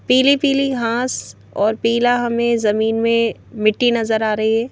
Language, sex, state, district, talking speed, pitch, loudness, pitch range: Hindi, female, Madhya Pradesh, Bhopal, 165 wpm, 230 Hz, -17 LUFS, 220-245 Hz